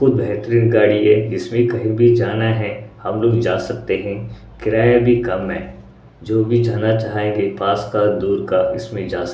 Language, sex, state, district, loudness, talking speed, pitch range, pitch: Hindi, male, Odisha, Sambalpur, -17 LUFS, 165 wpm, 105-115 Hz, 110 Hz